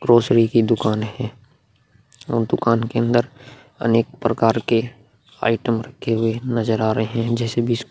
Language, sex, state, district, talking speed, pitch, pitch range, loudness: Hindi, male, Bihar, Vaishali, 160 wpm, 115 Hz, 115-120 Hz, -20 LUFS